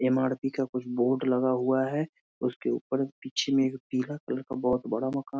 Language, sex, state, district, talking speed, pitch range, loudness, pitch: Hindi, male, Bihar, Muzaffarpur, 210 wpm, 125-135 Hz, -29 LUFS, 130 Hz